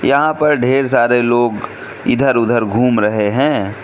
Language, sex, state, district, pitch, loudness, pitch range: Hindi, male, Manipur, Imphal West, 120 Hz, -14 LUFS, 110-125 Hz